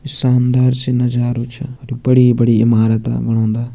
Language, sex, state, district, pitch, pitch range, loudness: Hindi, male, Uttarakhand, Tehri Garhwal, 125 Hz, 115-125 Hz, -14 LUFS